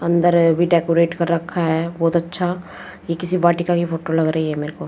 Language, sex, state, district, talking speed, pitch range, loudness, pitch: Hindi, female, Haryana, Jhajjar, 235 wpm, 165-175 Hz, -18 LUFS, 170 Hz